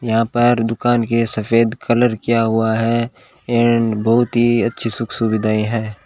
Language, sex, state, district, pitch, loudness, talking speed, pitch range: Hindi, male, Rajasthan, Bikaner, 115 Hz, -17 LUFS, 160 wpm, 115-120 Hz